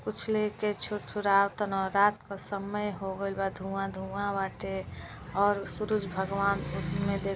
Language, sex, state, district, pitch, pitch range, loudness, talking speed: Bhojpuri, female, Uttar Pradesh, Deoria, 195 Hz, 190-205 Hz, -31 LUFS, 140 wpm